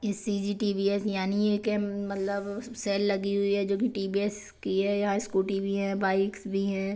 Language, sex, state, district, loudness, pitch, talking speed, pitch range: Hindi, female, Chhattisgarh, Kabirdham, -29 LUFS, 200 Hz, 235 wpm, 195-205 Hz